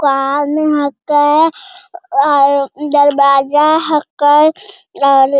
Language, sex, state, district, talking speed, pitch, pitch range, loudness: Hindi, male, Bihar, Jamui, 65 wpm, 295 Hz, 280-320 Hz, -12 LUFS